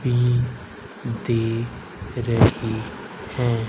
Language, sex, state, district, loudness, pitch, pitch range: Hindi, male, Haryana, Rohtak, -23 LUFS, 115 Hz, 110-120 Hz